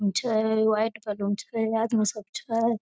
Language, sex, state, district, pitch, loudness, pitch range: Hindi, female, Bihar, Darbhanga, 220 Hz, -26 LUFS, 210-225 Hz